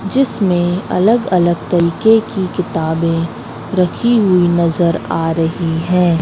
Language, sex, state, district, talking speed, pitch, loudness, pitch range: Hindi, female, Madhya Pradesh, Katni, 115 wpm, 175 Hz, -15 LUFS, 165-190 Hz